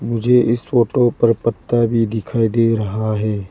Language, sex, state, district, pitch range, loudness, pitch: Hindi, female, Arunachal Pradesh, Lower Dibang Valley, 110-120 Hz, -17 LUFS, 115 Hz